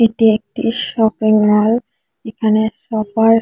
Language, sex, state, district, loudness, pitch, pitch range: Bengali, female, West Bengal, Kolkata, -15 LUFS, 220 Hz, 215-230 Hz